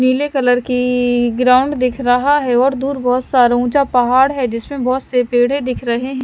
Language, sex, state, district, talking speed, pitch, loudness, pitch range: Hindi, female, Himachal Pradesh, Shimla, 200 wpm, 255 Hz, -15 LUFS, 245-265 Hz